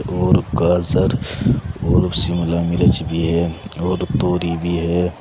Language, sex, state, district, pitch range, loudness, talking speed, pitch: Hindi, male, Uttar Pradesh, Saharanpur, 85-90 Hz, -18 LUFS, 125 wpm, 85 Hz